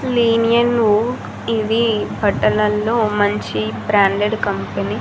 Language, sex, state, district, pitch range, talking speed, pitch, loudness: Telugu, female, Andhra Pradesh, Annamaya, 205-230 Hz, 70 wpm, 215 Hz, -17 LUFS